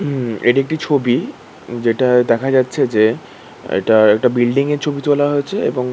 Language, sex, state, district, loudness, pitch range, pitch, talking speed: Bengali, male, West Bengal, Kolkata, -16 LUFS, 120-145 Hz, 125 Hz, 170 wpm